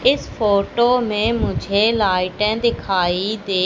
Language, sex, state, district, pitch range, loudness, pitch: Hindi, female, Madhya Pradesh, Katni, 195-225 Hz, -18 LUFS, 210 Hz